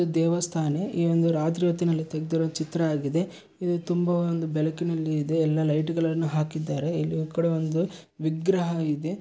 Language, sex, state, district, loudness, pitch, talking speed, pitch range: Kannada, male, Karnataka, Bellary, -26 LUFS, 165 Hz, 155 wpm, 155-170 Hz